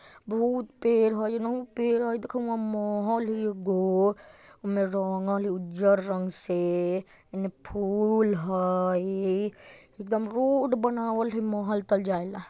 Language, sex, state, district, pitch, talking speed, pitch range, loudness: Bajjika, male, Bihar, Vaishali, 205 Hz, 130 wpm, 190-225 Hz, -27 LUFS